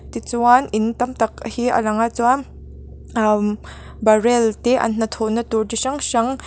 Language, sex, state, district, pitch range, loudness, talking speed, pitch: Mizo, female, Mizoram, Aizawl, 220-245 Hz, -19 LUFS, 165 wpm, 230 Hz